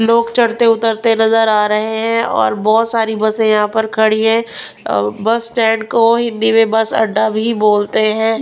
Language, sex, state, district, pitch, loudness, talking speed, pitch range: Hindi, female, Punjab, Pathankot, 225 Hz, -13 LUFS, 180 wpm, 215-230 Hz